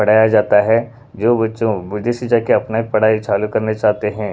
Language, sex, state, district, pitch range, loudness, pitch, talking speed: Hindi, male, Punjab, Pathankot, 105-115 Hz, -16 LUFS, 110 Hz, 205 wpm